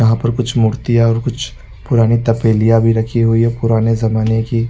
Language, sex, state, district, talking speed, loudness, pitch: Hindi, male, Chhattisgarh, Raigarh, 190 wpm, -14 LUFS, 115 Hz